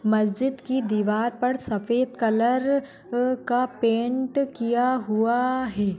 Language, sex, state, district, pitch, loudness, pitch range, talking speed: Hindi, female, Maharashtra, Nagpur, 245 Hz, -24 LUFS, 225-255 Hz, 120 wpm